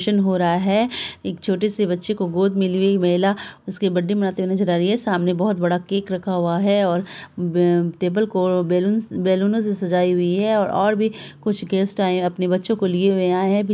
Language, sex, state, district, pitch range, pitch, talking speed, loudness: Hindi, female, Bihar, Araria, 180-205 Hz, 190 Hz, 225 wpm, -20 LUFS